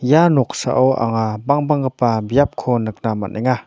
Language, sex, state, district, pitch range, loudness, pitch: Garo, male, Meghalaya, North Garo Hills, 110-140 Hz, -17 LUFS, 125 Hz